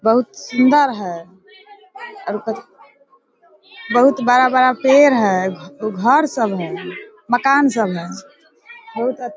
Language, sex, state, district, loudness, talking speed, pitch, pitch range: Hindi, female, Bihar, Sitamarhi, -16 LUFS, 115 wpm, 255 Hz, 215-290 Hz